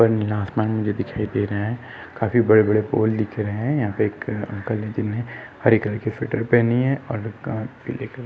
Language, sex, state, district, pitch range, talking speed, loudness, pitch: Hindi, male, Maharashtra, Nagpur, 105-120 Hz, 210 wpm, -22 LUFS, 110 Hz